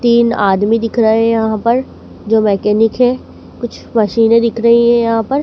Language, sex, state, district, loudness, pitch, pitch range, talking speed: Hindi, female, Madhya Pradesh, Dhar, -12 LUFS, 230 Hz, 220-235 Hz, 185 wpm